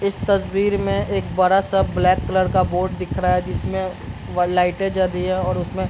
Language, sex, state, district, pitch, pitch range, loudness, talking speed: Hindi, male, Bihar, Bhagalpur, 185 Hz, 180-195 Hz, -20 LUFS, 215 wpm